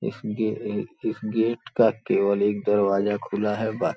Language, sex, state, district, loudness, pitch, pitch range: Hindi, male, Uttar Pradesh, Gorakhpur, -24 LUFS, 105 Hz, 100-110 Hz